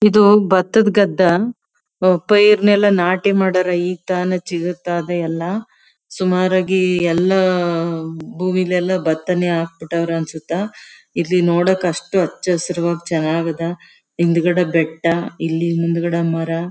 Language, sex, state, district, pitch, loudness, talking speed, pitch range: Kannada, female, Karnataka, Chamarajanagar, 175 Hz, -17 LUFS, 100 wpm, 170-185 Hz